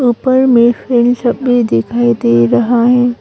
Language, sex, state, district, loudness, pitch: Hindi, female, Arunachal Pradesh, Longding, -11 LUFS, 240 Hz